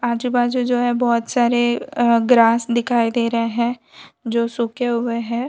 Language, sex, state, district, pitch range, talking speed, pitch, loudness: Hindi, female, Gujarat, Valsad, 235-245 Hz, 165 wpm, 235 Hz, -18 LUFS